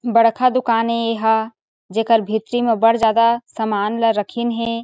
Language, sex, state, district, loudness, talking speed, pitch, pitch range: Chhattisgarhi, female, Chhattisgarh, Sarguja, -18 LUFS, 160 wpm, 230 Hz, 220-230 Hz